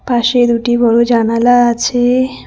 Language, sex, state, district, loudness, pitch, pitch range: Bengali, female, West Bengal, Cooch Behar, -12 LUFS, 240 Hz, 235-245 Hz